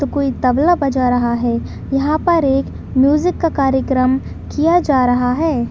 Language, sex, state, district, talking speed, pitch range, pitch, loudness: Hindi, female, Chhattisgarh, Bilaspur, 170 wpm, 255-305 Hz, 270 Hz, -16 LUFS